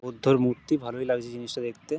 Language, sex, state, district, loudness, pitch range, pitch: Bengali, male, West Bengal, North 24 Parganas, -27 LUFS, 120-135 Hz, 125 Hz